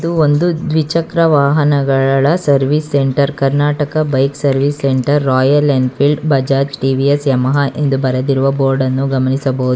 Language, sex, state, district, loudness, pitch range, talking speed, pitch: Kannada, female, Karnataka, Bangalore, -14 LUFS, 135-145 Hz, 130 wpm, 140 Hz